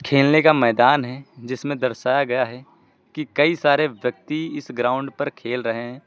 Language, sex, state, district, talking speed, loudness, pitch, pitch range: Hindi, male, Uttar Pradesh, Lucknow, 180 wpm, -20 LUFS, 135 Hz, 125-145 Hz